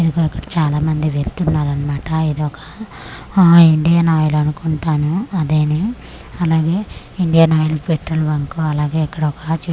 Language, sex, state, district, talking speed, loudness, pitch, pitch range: Telugu, female, Andhra Pradesh, Manyam, 130 wpm, -16 LUFS, 160 Hz, 150-165 Hz